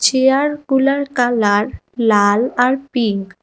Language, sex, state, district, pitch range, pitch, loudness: Bengali, female, Assam, Hailakandi, 210-270 Hz, 245 Hz, -16 LUFS